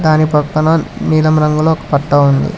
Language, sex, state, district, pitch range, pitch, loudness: Telugu, male, Telangana, Hyderabad, 150-155 Hz, 155 Hz, -12 LUFS